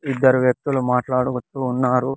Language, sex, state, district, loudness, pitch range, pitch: Telugu, male, Andhra Pradesh, Sri Satya Sai, -20 LUFS, 125-135 Hz, 130 Hz